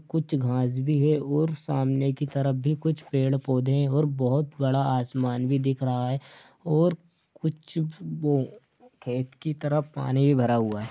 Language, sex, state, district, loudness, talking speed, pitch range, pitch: Hindi, male, Bihar, Darbhanga, -26 LUFS, 170 wpm, 130-155 Hz, 140 Hz